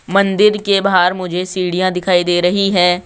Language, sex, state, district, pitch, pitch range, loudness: Hindi, male, Rajasthan, Jaipur, 185 Hz, 180-195 Hz, -14 LUFS